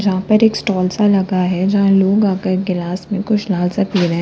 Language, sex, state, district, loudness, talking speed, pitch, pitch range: Hindi, female, Uttar Pradesh, Lalitpur, -15 LUFS, 255 wpm, 195 Hz, 185-205 Hz